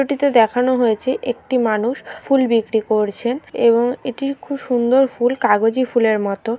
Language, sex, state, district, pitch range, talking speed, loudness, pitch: Bengali, female, West Bengal, Purulia, 225-260 Hz, 145 wpm, -18 LUFS, 245 Hz